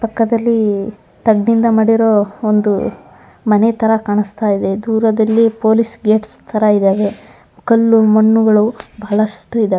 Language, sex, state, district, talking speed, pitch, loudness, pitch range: Kannada, male, Karnataka, Mysore, 115 wpm, 220 Hz, -14 LUFS, 210-225 Hz